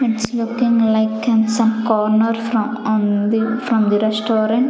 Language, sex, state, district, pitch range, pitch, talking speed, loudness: English, female, Chandigarh, Chandigarh, 220-230 Hz, 225 Hz, 155 wpm, -17 LUFS